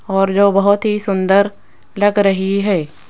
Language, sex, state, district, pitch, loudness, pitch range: Hindi, female, Rajasthan, Jaipur, 200 Hz, -15 LUFS, 195-205 Hz